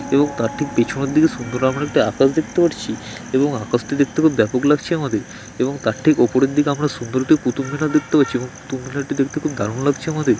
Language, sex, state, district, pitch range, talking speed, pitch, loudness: Bengali, male, West Bengal, Dakshin Dinajpur, 125-150 Hz, 235 wpm, 140 Hz, -19 LUFS